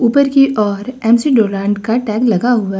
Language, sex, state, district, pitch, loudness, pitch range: Hindi, female, Uttar Pradesh, Lucknow, 230 Hz, -14 LUFS, 205-250 Hz